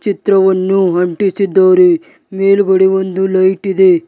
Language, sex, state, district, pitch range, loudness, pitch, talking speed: Kannada, male, Karnataka, Bidar, 190-195 Hz, -12 LUFS, 190 Hz, 90 wpm